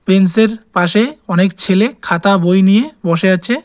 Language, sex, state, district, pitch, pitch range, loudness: Bengali, male, West Bengal, Cooch Behar, 195 Hz, 185-220 Hz, -13 LUFS